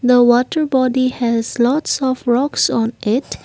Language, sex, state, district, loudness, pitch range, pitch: English, female, Assam, Kamrup Metropolitan, -16 LUFS, 240-260 Hz, 250 Hz